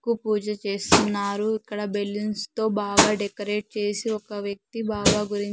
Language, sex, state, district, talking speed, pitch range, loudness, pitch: Telugu, female, Andhra Pradesh, Sri Satya Sai, 140 wpm, 205-215 Hz, -24 LUFS, 210 Hz